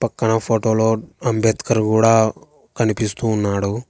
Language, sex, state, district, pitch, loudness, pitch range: Telugu, male, Telangana, Hyderabad, 110 Hz, -18 LUFS, 110-115 Hz